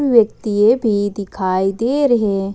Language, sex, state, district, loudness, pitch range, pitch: Hindi, female, Jharkhand, Ranchi, -16 LUFS, 200-235 Hz, 210 Hz